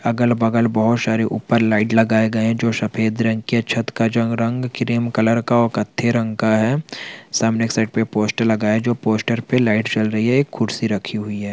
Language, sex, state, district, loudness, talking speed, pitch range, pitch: Hindi, male, Chhattisgarh, Rajnandgaon, -18 LUFS, 230 wpm, 110-115 Hz, 115 Hz